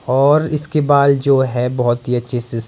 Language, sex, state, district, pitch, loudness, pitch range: Hindi, male, Himachal Pradesh, Shimla, 130 Hz, -15 LUFS, 125-145 Hz